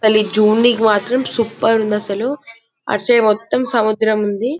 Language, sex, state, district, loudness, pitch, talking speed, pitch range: Telugu, male, Telangana, Karimnagar, -15 LUFS, 225 Hz, 130 wpm, 215-240 Hz